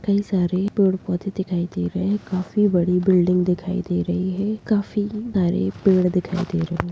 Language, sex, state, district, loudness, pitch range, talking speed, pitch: Kumaoni, female, Uttarakhand, Tehri Garhwal, -21 LUFS, 180-200 Hz, 180 wpm, 185 Hz